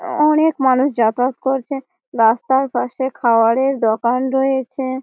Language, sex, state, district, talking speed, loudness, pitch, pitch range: Bengali, female, West Bengal, Malda, 105 wpm, -17 LUFS, 265 Hz, 240-270 Hz